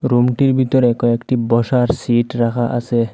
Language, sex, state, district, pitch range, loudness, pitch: Bengali, male, Assam, Hailakandi, 120-125 Hz, -16 LUFS, 120 Hz